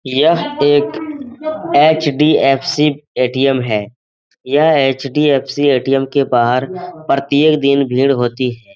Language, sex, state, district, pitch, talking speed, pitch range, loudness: Hindi, male, Bihar, Jahanabad, 140 Hz, 110 wpm, 135-155 Hz, -14 LUFS